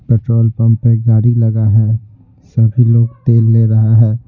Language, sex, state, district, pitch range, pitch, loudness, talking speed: Hindi, male, Bihar, Patna, 110-115 Hz, 115 Hz, -12 LUFS, 180 wpm